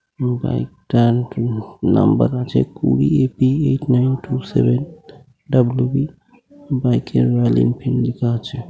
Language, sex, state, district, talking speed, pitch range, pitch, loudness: Bengali, male, West Bengal, North 24 Parganas, 130 wpm, 100-130 Hz, 125 Hz, -18 LUFS